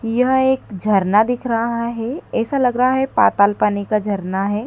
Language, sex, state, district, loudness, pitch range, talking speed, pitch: Hindi, female, Madhya Pradesh, Dhar, -18 LUFS, 205-250 Hz, 195 wpm, 230 Hz